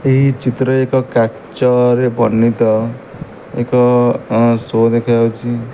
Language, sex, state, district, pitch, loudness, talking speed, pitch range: Odia, male, Odisha, Malkangiri, 120 Hz, -14 LUFS, 85 wpm, 115-130 Hz